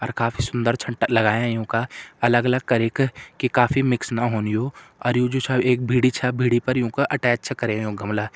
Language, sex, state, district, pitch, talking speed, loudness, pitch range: Hindi, male, Uttarakhand, Tehri Garhwal, 120 Hz, 235 wpm, -22 LUFS, 115-125 Hz